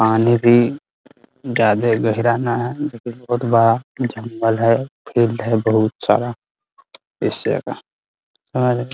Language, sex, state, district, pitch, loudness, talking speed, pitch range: Hindi, male, Bihar, Muzaffarpur, 120 Hz, -18 LUFS, 130 wpm, 115-125 Hz